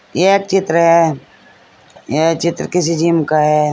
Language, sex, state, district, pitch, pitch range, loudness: Hindi, female, Uttar Pradesh, Saharanpur, 165 Hz, 155-170 Hz, -14 LUFS